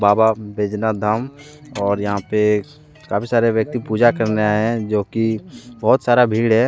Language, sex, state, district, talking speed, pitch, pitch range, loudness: Hindi, male, Jharkhand, Deoghar, 170 wpm, 110 Hz, 105-120 Hz, -18 LUFS